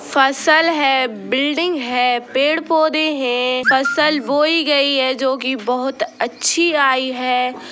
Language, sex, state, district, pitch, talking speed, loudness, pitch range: Hindi, female, Bihar, Gopalganj, 270 Hz, 140 wpm, -16 LUFS, 255-305 Hz